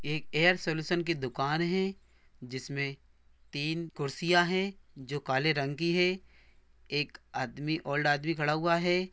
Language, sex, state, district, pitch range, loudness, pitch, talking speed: Hindi, male, Andhra Pradesh, Anantapur, 135-175 Hz, -31 LUFS, 150 Hz, 160 wpm